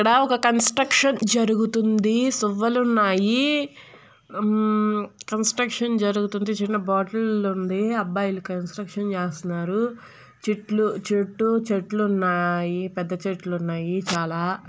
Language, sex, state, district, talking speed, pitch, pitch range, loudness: Telugu, female, Andhra Pradesh, Guntur, 75 wpm, 210 Hz, 190-225 Hz, -23 LUFS